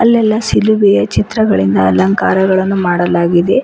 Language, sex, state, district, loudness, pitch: Kannada, female, Karnataka, Bidar, -12 LUFS, 185 Hz